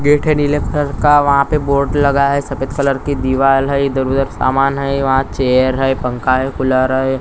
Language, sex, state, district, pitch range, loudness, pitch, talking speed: Hindi, male, Maharashtra, Gondia, 130-140 Hz, -15 LUFS, 135 Hz, 210 wpm